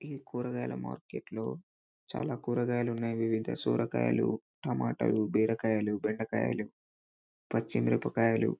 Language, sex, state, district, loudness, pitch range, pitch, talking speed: Telugu, male, Telangana, Karimnagar, -32 LUFS, 80-115 Hz, 110 Hz, 90 wpm